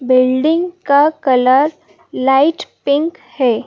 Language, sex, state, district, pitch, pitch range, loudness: Hindi, female, Madhya Pradesh, Bhopal, 280 Hz, 255-310 Hz, -14 LUFS